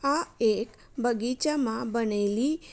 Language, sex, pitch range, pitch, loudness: Gujarati, female, 225-280 Hz, 240 Hz, -28 LUFS